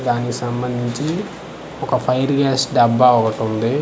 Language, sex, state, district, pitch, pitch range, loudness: Telugu, male, Andhra Pradesh, Manyam, 125 Hz, 120-135 Hz, -18 LUFS